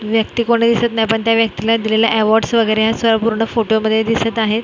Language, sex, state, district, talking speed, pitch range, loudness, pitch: Marathi, female, Maharashtra, Mumbai Suburban, 220 wpm, 220-230 Hz, -15 LUFS, 225 Hz